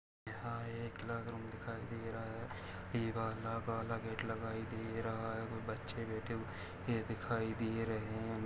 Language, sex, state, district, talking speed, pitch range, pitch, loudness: Hindi, male, Maharashtra, Dhule, 170 wpm, 110-115 Hz, 115 Hz, -42 LUFS